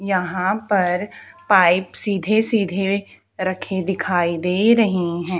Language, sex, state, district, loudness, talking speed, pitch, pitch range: Hindi, female, Haryana, Charkhi Dadri, -19 LUFS, 110 wpm, 190 Hz, 180-200 Hz